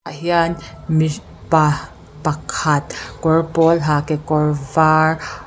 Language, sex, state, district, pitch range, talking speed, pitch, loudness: Mizo, female, Mizoram, Aizawl, 150-165 Hz, 100 wpm, 155 Hz, -17 LUFS